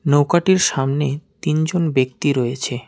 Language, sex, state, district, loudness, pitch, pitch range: Bengali, male, West Bengal, Alipurduar, -18 LUFS, 145 Hz, 130-160 Hz